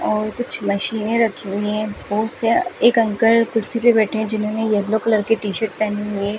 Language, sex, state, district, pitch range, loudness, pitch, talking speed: Hindi, female, Rajasthan, Bikaner, 210-225 Hz, -18 LUFS, 220 Hz, 215 wpm